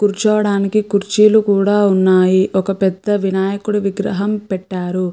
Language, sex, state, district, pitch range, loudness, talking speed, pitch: Telugu, female, Andhra Pradesh, Chittoor, 190-205 Hz, -15 LUFS, 105 wpm, 200 Hz